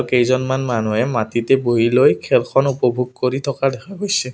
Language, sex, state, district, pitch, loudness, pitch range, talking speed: Assamese, male, Assam, Kamrup Metropolitan, 130 Hz, -18 LUFS, 120-135 Hz, 150 wpm